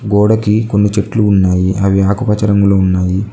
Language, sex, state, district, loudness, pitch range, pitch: Telugu, male, Telangana, Mahabubabad, -12 LUFS, 95-105 Hz, 100 Hz